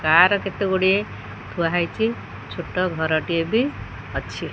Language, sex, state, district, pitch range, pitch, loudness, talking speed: Odia, female, Odisha, Khordha, 160-195 Hz, 175 Hz, -22 LUFS, 120 wpm